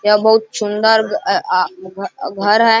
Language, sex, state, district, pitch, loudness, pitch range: Hindi, male, Bihar, Araria, 210 Hz, -15 LUFS, 205-220 Hz